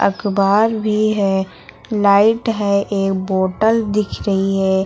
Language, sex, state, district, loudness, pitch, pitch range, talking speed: Hindi, female, Uttar Pradesh, Lucknow, -16 LUFS, 200 Hz, 195-215 Hz, 125 wpm